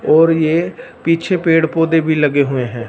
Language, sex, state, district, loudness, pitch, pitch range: Hindi, male, Punjab, Fazilka, -15 LUFS, 160 Hz, 150-165 Hz